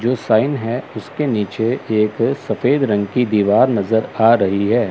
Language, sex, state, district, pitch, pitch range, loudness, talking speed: Hindi, male, Chandigarh, Chandigarh, 115 Hz, 105-120 Hz, -17 LUFS, 170 wpm